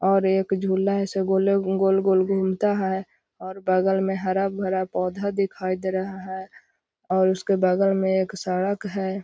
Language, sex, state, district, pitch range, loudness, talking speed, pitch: Magahi, female, Bihar, Gaya, 190-195 Hz, -23 LUFS, 155 wpm, 190 Hz